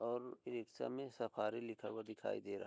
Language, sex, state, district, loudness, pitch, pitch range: Hindi, male, Uttar Pradesh, Hamirpur, -45 LUFS, 115 Hz, 110-120 Hz